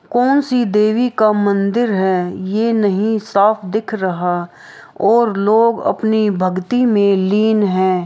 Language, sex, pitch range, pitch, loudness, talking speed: Maithili, female, 190-225 Hz, 210 Hz, -15 LUFS, 135 wpm